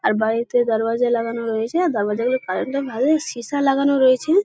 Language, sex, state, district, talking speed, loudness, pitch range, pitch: Bengali, male, West Bengal, Kolkata, 175 wpm, -20 LUFS, 230-275 Hz, 245 Hz